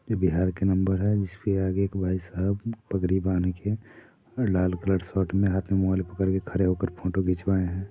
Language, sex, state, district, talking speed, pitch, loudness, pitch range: Hindi, male, Bihar, Sitamarhi, 210 wpm, 95 Hz, -26 LUFS, 95-100 Hz